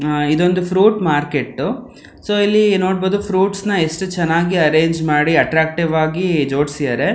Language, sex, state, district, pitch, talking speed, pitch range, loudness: Kannada, male, Karnataka, Mysore, 170 Hz, 150 wpm, 155-195 Hz, -16 LUFS